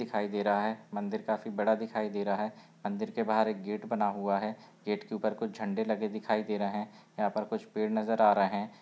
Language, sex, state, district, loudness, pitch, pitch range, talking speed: Hindi, male, Bihar, Gaya, -32 LUFS, 105 Hz, 105-110 Hz, 250 wpm